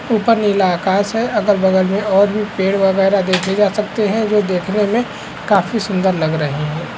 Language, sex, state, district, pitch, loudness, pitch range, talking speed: Hindi, male, Bihar, Saharsa, 200 Hz, -16 LUFS, 190-210 Hz, 190 wpm